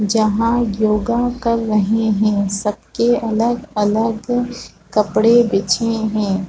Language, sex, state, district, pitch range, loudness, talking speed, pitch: Hindi, female, Chhattisgarh, Balrampur, 210-235 Hz, -17 LUFS, 100 wpm, 220 Hz